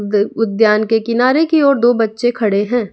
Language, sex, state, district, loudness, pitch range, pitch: Hindi, female, Bihar, West Champaran, -14 LUFS, 215-245 Hz, 225 Hz